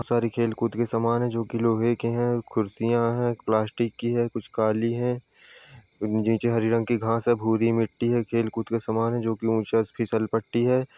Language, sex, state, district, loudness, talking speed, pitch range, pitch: Hindi, male, Uttar Pradesh, Ghazipur, -25 LUFS, 200 wpm, 115-120 Hz, 115 Hz